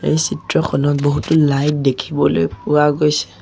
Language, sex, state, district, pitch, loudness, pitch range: Assamese, male, Assam, Sonitpur, 145 Hz, -16 LUFS, 130-150 Hz